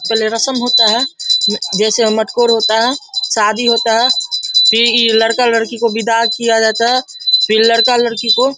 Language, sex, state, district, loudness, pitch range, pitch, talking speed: Hindi, male, Bihar, Darbhanga, -12 LUFS, 225-245 Hz, 230 Hz, 160 wpm